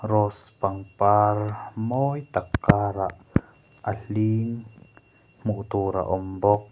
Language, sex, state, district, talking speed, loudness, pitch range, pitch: Mizo, male, Mizoram, Aizawl, 105 wpm, -25 LUFS, 100-110 Hz, 105 Hz